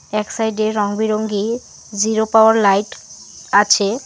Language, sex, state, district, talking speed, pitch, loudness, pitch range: Bengali, female, West Bengal, Alipurduar, 120 wpm, 215 Hz, -16 LUFS, 205-220 Hz